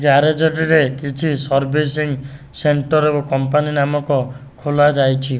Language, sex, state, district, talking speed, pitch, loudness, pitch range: Odia, male, Odisha, Nuapada, 110 wpm, 145 Hz, -17 LUFS, 135-150 Hz